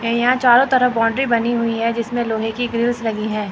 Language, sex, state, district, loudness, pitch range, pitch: Hindi, female, Chandigarh, Chandigarh, -18 LUFS, 225-240 Hz, 235 Hz